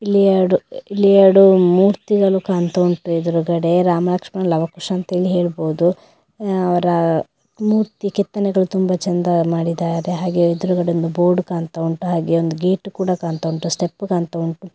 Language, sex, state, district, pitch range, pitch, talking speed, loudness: Kannada, female, Karnataka, Dakshina Kannada, 170-190 Hz, 180 Hz, 145 wpm, -17 LUFS